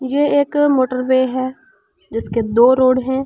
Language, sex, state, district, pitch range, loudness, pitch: Hindi, female, Delhi, New Delhi, 255-285 Hz, -16 LUFS, 260 Hz